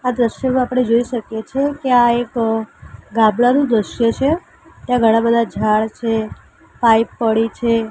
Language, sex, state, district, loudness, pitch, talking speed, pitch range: Gujarati, female, Gujarat, Gandhinagar, -17 LUFS, 235 Hz, 150 wpm, 225-250 Hz